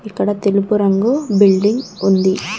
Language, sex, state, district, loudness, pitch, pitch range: Telugu, female, Telangana, Mahabubabad, -15 LUFS, 200 Hz, 195-215 Hz